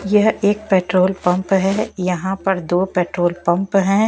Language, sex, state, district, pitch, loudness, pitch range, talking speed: Hindi, female, Bihar, West Champaran, 190 Hz, -18 LUFS, 180-200 Hz, 160 wpm